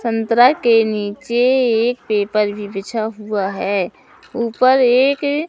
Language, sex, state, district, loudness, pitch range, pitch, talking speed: Hindi, male, Madhya Pradesh, Katni, -17 LUFS, 210-250 Hz, 230 Hz, 120 wpm